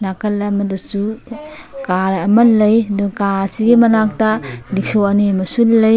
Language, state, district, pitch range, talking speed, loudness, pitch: Manipuri, Manipur, Imphal West, 195-225 Hz, 120 wpm, -15 LUFS, 205 Hz